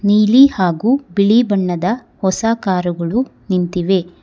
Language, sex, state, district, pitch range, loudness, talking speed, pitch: Kannada, female, Karnataka, Bangalore, 180-230 Hz, -15 LUFS, 100 wpm, 200 Hz